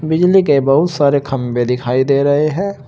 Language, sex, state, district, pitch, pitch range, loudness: Hindi, male, Uttar Pradesh, Shamli, 140 Hz, 135-160 Hz, -14 LUFS